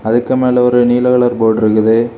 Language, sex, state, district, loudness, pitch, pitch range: Tamil, male, Tamil Nadu, Kanyakumari, -12 LUFS, 120 Hz, 110-125 Hz